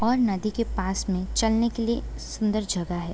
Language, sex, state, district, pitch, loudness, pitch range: Hindi, female, Bihar, Gopalganj, 215 Hz, -26 LUFS, 190-230 Hz